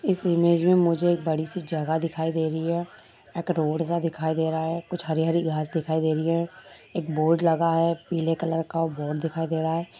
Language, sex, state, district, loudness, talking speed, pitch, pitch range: Hindi, female, Bihar, Madhepura, -25 LUFS, 230 wpm, 165 Hz, 160-170 Hz